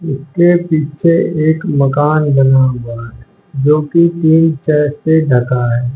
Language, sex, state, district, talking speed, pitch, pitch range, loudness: Hindi, female, Haryana, Charkhi Dadri, 130 wpm, 150 Hz, 135-160 Hz, -12 LUFS